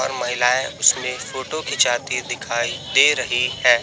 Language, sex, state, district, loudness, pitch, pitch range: Hindi, male, Chhattisgarh, Raipur, -19 LUFS, 125 Hz, 120-130 Hz